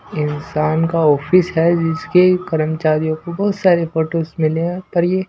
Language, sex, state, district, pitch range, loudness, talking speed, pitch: Hindi, male, Punjab, Pathankot, 155-180 Hz, -17 LUFS, 160 wpm, 165 Hz